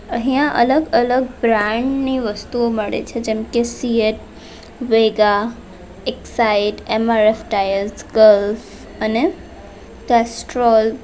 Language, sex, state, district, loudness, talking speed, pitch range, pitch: Gujarati, female, Gujarat, Valsad, -17 LUFS, 100 wpm, 215-245 Hz, 225 Hz